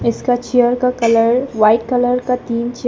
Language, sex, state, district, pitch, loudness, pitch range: Hindi, female, Arunachal Pradesh, Papum Pare, 245 Hz, -15 LUFS, 235-250 Hz